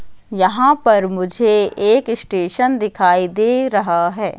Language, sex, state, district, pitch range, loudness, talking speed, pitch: Hindi, female, Madhya Pradesh, Katni, 185-230 Hz, -16 LUFS, 125 wpm, 210 Hz